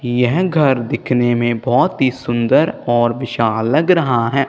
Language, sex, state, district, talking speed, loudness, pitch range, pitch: Hindi, male, Punjab, Kapurthala, 160 wpm, -16 LUFS, 120-135 Hz, 120 Hz